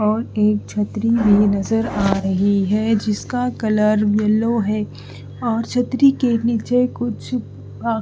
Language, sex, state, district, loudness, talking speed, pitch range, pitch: Hindi, female, Haryana, Charkhi Dadri, -19 LUFS, 135 wpm, 210-235 Hz, 220 Hz